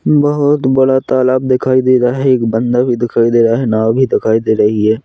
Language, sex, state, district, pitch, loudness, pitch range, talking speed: Hindi, male, Chhattisgarh, Korba, 125 Hz, -12 LUFS, 115-130 Hz, 235 wpm